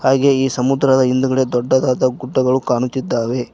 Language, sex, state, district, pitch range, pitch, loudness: Kannada, male, Karnataka, Koppal, 125-130 Hz, 130 Hz, -16 LUFS